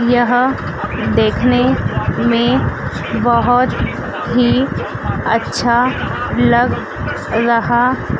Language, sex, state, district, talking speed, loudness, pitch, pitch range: Hindi, female, Madhya Pradesh, Dhar, 60 wpm, -15 LUFS, 240 Hz, 230-245 Hz